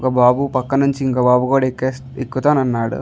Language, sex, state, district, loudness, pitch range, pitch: Telugu, male, Andhra Pradesh, Chittoor, -17 LUFS, 125-135 Hz, 130 Hz